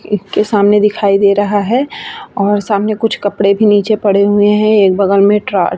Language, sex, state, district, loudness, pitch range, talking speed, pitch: Hindi, female, Bihar, Vaishali, -11 LUFS, 200-215 Hz, 230 wpm, 205 Hz